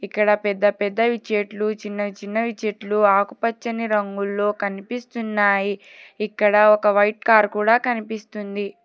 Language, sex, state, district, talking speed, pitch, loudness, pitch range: Telugu, female, Telangana, Hyderabad, 100 wpm, 210 Hz, -20 LUFS, 205-220 Hz